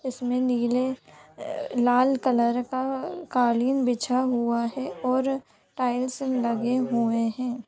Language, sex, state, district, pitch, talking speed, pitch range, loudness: Hindi, female, Bihar, Sitamarhi, 250 Hz, 115 wpm, 240-260 Hz, -25 LUFS